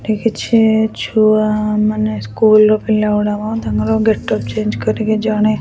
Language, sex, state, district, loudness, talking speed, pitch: Odia, female, Odisha, Khordha, -15 LUFS, 140 wpm, 215 Hz